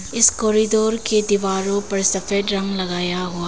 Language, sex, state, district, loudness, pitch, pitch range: Hindi, female, Arunachal Pradesh, Papum Pare, -19 LUFS, 200 Hz, 190-215 Hz